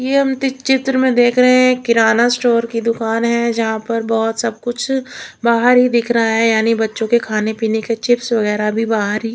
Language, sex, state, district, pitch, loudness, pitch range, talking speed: Hindi, female, Chandigarh, Chandigarh, 230 Hz, -15 LUFS, 225-250 Hz, 230 wpm